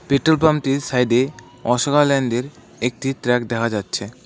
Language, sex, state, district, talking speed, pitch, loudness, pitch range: Bengali, male, West Bengal, Cooch Behar, 140 wpm, 125 Hz, -19 LUFS, 120-140 Hz